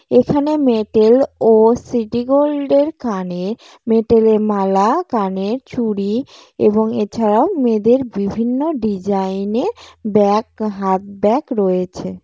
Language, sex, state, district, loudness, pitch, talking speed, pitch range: Bengali, female, West Bengal, Jalpaiguri, -16 LUFS, 225 Hz, 105 wpm, 200-250 Hz